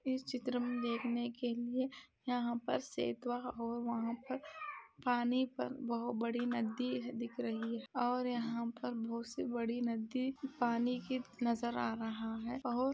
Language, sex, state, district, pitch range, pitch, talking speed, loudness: Hindi, female, Jharkhand, Sahebganj, 235-250 Hz, 240 Hz, 155 wpm, -39 LUFS